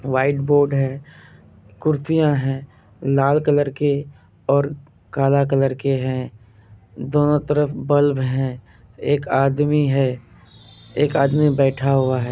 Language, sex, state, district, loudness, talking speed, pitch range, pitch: Hindi, male, Bihar, Kishanganj, -19 LUFS, 120 wpm, 130-145 Hz, 135 Hz